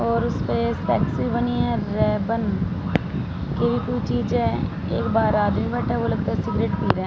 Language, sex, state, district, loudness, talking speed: Hindi, female, Punjab, Fazilka, -23 LUFS, 170 wpm